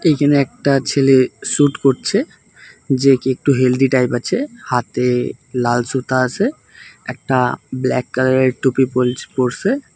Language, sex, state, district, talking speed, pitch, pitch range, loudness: Bengali, male, West Bengal, Alipurduar, 125 wpm, 130 Hz, 125-135 Hz, -17 LUFS